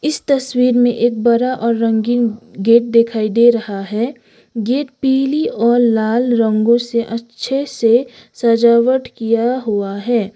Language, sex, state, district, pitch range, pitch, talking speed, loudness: Hindi, female, Sikkim, Gangtok, 230-250 Hz, 235 Hz, 140 wpm, -15 LUFS